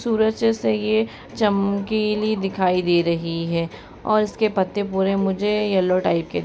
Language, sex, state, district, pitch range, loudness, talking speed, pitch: Hindi, female, Bihar, Gopalganj, 170-210 Hz, -21 LUFS, 165 wpm, 195 Hz